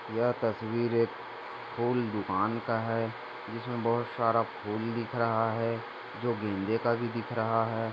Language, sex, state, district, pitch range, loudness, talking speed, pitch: Hindi, male, Maharashtra, Sindhudurg, 115-120 Hz, -31 LUFS, 160 wpm, 115 Hz